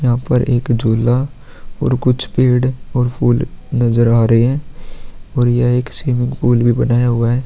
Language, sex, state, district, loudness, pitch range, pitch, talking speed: Hindi, male, Chhattisgarh, Korba, -15 LUFS, 120-125 Hz, 125 Hz, 170 wpm